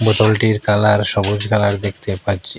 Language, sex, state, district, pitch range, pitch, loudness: Bengali, male, Assam, Hailakandi, 100-110 Hz, 105 Hz, -16 LUFS